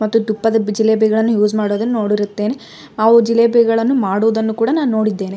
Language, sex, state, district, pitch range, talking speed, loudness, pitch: Kannada, female, Karnataka, Raichur, 215-230 Hz, 45 wpm, -15 LUFS, 220 Hz